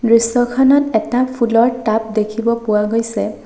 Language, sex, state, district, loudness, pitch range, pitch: Assamese, female, Assam, Sonitpur, -15 LUFS, 225-245 Hz, 230 Hz